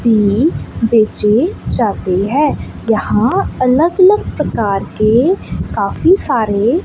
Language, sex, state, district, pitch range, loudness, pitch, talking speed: Hindi, female, Chandigarh, Chandigarh, 210-310 Hz, -14 LUFS, 230 Hz, 95 wpm